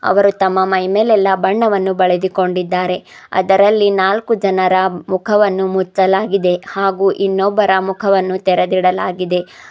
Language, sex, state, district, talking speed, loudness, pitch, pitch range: Kannada, female, Karnataka, Bidar, 85 wpm, -14 LUFS, 190 Hz, 185-200 Hz